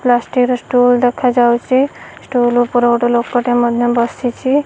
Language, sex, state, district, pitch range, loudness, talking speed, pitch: Odia, female, Odisha, Nuapada, 240-250 Hz, -14 LUFS, 130 wpm, 245 Hz